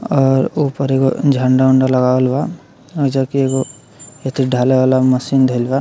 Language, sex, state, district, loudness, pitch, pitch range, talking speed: Bhojpuri, male, Bihar, Muzaffarpur, -15 LUFS, 130 Hz, 130-135 Hz, 135 wpm